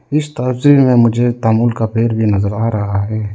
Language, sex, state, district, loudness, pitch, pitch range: Hindi, male, Arunachal Pradesh, Lower Dibang Valley, -14 LUFS, 115 Hz, 110-125 Hz